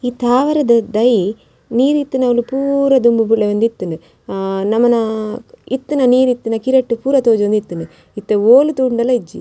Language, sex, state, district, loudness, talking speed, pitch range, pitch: Tulu, female, Karnataka, Dakshina Kannada, -15 LUFS, 135 wpm, 215-260 Hz, 235 Hz